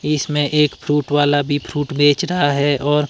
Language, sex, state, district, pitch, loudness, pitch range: Hindi, male, Himachal Pradesh, Shimla, 145 Hz, -17 LUFS, 145-150 Hz